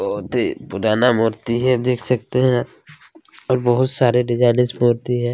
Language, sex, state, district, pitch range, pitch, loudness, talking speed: Hindi, male, Chhattisgarh, Kabirdham, 120-130 Hz, 125 Hz, -18 LUFS, 155 wpm